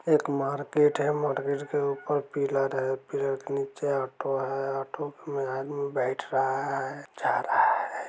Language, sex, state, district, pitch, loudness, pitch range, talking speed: Bajjika, male, Bihar, Vaishali, 140 Hz, -28 LUFS, 135-145 Hz, 165 wpm